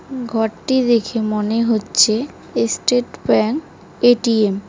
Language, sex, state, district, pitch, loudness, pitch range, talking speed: Bengali, female, West Bengal, Cooch Behar, 230 Hz, -17 LUFS, 215-245 Hz, 100 wpm